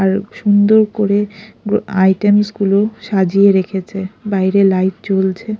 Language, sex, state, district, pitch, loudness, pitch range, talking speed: Bengali, female, Odisha, Khordha, 200 Hz, -14 LUFS, 190-210 Hz, 105 wpm